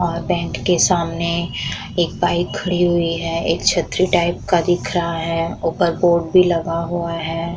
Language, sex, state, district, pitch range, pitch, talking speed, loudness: Hindi, female, Uttar Pradesh, Muzaffarnagar, 165-175 Hz, 170 Hz, 165 wpm, -18 LUFS